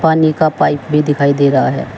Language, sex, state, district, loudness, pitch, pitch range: Hindi, female, Uttar Pradesh, Shamli, -13 LUFS, 150 Hz, 140-155 Hz